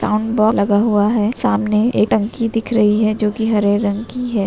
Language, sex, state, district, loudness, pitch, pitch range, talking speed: Hindi, female, Uttar Pradesh, Etah, -16 LUFS, 215 Hz, 210-225 Hz, 200 wpm